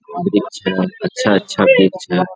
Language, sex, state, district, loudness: Hindi, male, Bihar, Araria, -15 LUFS